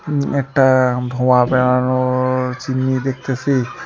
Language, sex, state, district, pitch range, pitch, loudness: Bengali, male, West Bengal, Alipurduar, 125-135 Hz, 130 Hz, -17 LUFS